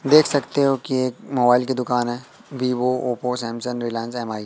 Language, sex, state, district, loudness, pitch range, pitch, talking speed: Hindi, male, Madhya Pradesh, Katni, -21 LUFS, 120-130 Hz, 125 Hz, 200 wpm